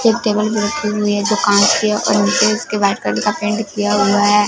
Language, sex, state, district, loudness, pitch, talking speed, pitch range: Hindi, female, Punjab, Fazilka, -15 LUFS, 210 Hz, 270 wpm, 205-215 Hz